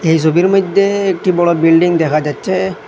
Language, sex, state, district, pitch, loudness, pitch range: Bengali, male, Assam, Hailakandi, 175 Hz, -13 LUFS, 160-190 Hz